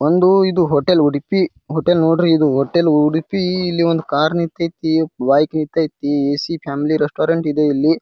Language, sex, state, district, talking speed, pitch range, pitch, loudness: Kannada, male, Karnataka, Bijapur, 150 wpm, 145-170 Hz, 160 Hz, -16 LUFS